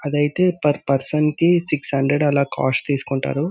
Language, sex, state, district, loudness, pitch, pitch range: Telugu, male, Andhra Pradesh, Visakhapatnam, -19 LUFS, 145 Hz, 140-150 Hz